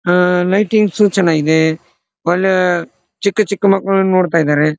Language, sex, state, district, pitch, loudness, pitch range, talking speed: Kannada, male, Karnataka, Dharwad, 185 Hz, -14 LUFS, 170-200 Hz, 115 wpm